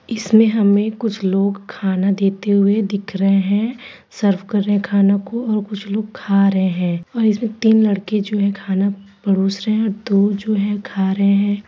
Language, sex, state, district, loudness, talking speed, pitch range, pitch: Hindi, female, Bihar, Gopalganj, -17 LUFS, 195 wpm, 195-215 Hz, 200 Hz